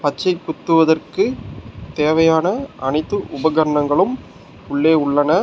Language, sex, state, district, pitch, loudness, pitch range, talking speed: Tamil, male, Tamil Nadu, Nilgiris, 160 Hz, -17 LUFS, 145-175 Hz, 75 wpm